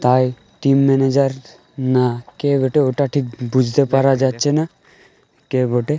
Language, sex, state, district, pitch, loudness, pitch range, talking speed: Bengali, male, Jharkhand, Jamtara, 135 Hz, -17 LUFS, 125-140 Hz, 140 wpm